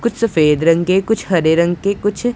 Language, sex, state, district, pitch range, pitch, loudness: Hindi, female, Punjab, Pathankot, 165-220 Hz, 190 Hz, -15 LUFS